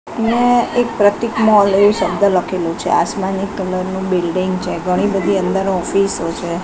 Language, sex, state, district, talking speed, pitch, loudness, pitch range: Gujarati, female, Gujarat, Gandhinagar, 165 wpm, 195 Hz, -16 LUFS, 185-205 Hz